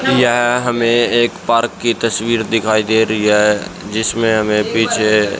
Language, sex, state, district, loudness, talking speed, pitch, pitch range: Hindi, male, Haryana, Rohtak, -15 LUFS, 145 wpm, 115 Hz, 110-120 Hz